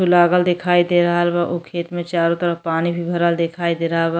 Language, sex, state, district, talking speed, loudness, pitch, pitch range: Bhojpuri, female, Uttar Pradesh, Deoria, 230 wpm, -18 LUFS, 175 Hz, 170-175 Hz